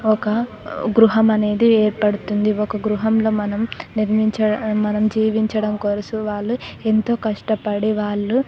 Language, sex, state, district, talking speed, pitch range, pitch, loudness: Telugu, female, Telangana, Nalgonda, 115 wpm, 210-220 Hz, 215 Hz, -19 LUFS